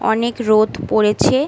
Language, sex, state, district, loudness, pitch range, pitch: Bengali, female, West Bengal, Kolkata, -16 LUFS, 215-240 Hz, 220 Hz